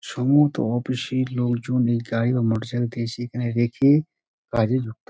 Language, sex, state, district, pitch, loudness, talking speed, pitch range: Bengali, male, West Bengal, Dakshin Dinajpur, 120 Hz, -22 LUFS, 175 wpm, 115-130 Hz